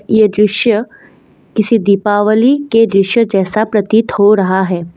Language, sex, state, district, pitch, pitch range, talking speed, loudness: Hindi, female, Assam, Kamrup Metropolitan, 210 Hz, 200-225 Hz, 135 wpm, -12 LUFS